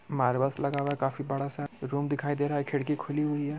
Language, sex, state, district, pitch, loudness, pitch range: Hindi, male, Bihar, Muzaffarpur, 145 Hz, -30 LUFS, 140-145 Hz